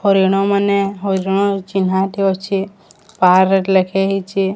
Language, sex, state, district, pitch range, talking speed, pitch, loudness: Odia, female, Odisha, Sambalpur, 190-200 Hz, 120 wpm, 195 Hz, -16 LUFS